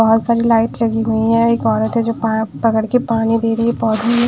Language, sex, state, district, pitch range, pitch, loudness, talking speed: Hindi, female, Punjab, Pathankot, 225-235 Hz, 230 Hz, -16 LUFS, 250 wpm